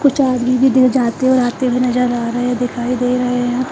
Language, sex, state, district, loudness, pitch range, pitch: Hindi, female, Bihar, Katihar, -15 LUFS, 245-255 Hz, 250 Hz